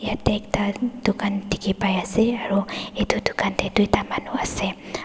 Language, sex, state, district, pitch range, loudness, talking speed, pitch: Nagamese, female, Nagaland, Dimapur, 200-220 Hz, -23 LUFS, 130 wpm, 205 Hz